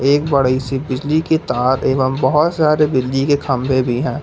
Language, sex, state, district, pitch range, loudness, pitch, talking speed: Hindi, male, Jharkhand, Palamu, 130-150 Hz, -16 LUFS, 135 Hz, 200 wpm